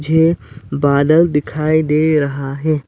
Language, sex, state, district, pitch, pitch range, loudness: Hindi, male, Arunachal Pradesh, Lower Dibang Valley, 150 Hz, 140-155 Hz, -15 LUFS